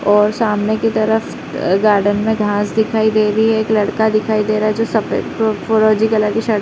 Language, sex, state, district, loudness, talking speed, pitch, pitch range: Hindi, female, Uttar Pradesh, Muzaffarnagar, -15 LUFS, 225 wpm, 215 Hz, 210-220 Hz